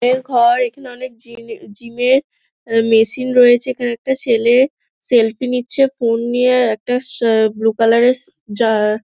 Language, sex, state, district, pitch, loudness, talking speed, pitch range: Bengali, female, West Bengal, Dakshin Dinajpur, 240 Hz, -15 LUFS, 165 wpm, 230-255 Hz